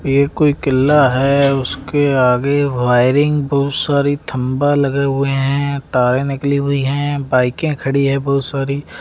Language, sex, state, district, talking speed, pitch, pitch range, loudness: Hindi, male, Rajasthan, Jaisalmer, 155 wpm, 140 Hz, 135-145 Hz, -15 LUFS